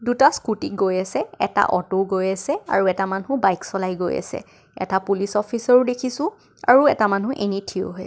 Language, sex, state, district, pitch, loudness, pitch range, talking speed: Assamese, female, Assam, Kamrup Metropolitan, 200 Hz, -21 LUFS, 190-255 Hz, 210 wpm